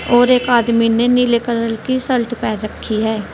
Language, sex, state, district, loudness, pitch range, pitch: Hindi, female, Uttar Pradesh, Saharanpur, -16 LUFS, 225-245 Hz, 235 Hz